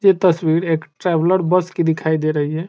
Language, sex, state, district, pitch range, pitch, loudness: Hindi, male, Bihar, Saran, 160-180 Hz, 165 Hz, -18 LUFS